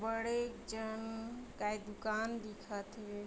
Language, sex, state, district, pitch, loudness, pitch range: Chhattisgarhi, female, Chhattisgarh, Bilaspur, 220 Hz, -41 LUFS, 210-225 Hz